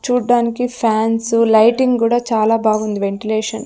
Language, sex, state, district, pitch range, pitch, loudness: Telugu, female, Andhra Pradesh, Sri Satya Sai, 220-240 Hz, 225 Hz, -15 LUFS